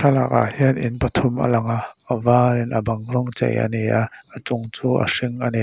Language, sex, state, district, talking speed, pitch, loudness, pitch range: Mizo, male, Mizoram, Aizawl, 255 wpm, 120 Hz, -20 LUFS, 115-125 Hz